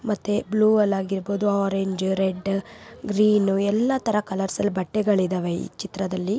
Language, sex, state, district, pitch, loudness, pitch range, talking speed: Kannada, female, Karnataka, Raichur, 200 Hz, -23 LUFS, 190-210 Hz, 140 wpm